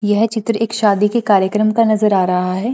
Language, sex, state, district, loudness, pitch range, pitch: Hindi, female, Bihar, Darbhanga, -15 LUFS, 200-225 Hz, 215 Hz